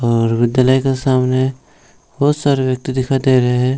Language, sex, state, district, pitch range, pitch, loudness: Hindi, male, Bihar, Jamui, 125-135 Hz, 130 Hz, -15 LUFS